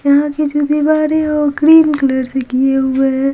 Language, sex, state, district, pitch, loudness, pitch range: Hindi, female, Bihar, Patna, 290 Hz, -13 LUFS, 270-300 Hz